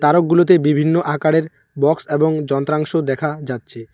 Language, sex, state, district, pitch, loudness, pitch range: Bengali, male, West Bengal, Alipurduar, 150 Hz, -17 LUFS, 145-160 Hz